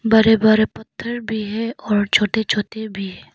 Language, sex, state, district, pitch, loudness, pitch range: Hindi, female, Arunachal Pradesh, Lower Dibang Valley, 220 Hz, -19 LUFS, 210-225 Hz